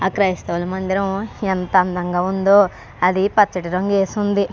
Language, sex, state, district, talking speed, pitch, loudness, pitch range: Telugu, female, Andhra Pradesh, Krishna, 145 wpm, 190 Hz, -18 LUFS, 180-200 Hz